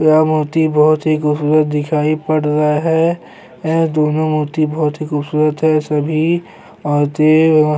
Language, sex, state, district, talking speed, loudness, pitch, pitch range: Hindi, male, Chhattisgarh, Kabirdham, 155 wpm, -15 LUFS, 155 Hz, 150-155 Hz